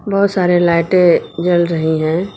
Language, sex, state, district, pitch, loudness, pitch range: Hindi, female, Uttar Pradesh, Lucknow, 175 Hz, -14 LUFS, 170-185 Hz